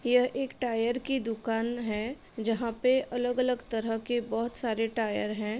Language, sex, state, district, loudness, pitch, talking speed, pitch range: Hindi, female, Uttar Pradesh, Etah, -30 LUFS, 235 Hz, 160 wpm, 225-250 Hz